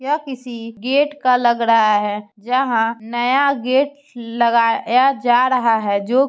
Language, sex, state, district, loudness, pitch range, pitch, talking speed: Hindi, male, Bihar, Muzaffarpur, -17 LUFS, 230-265 Hz, 240 Hz, 155 wpm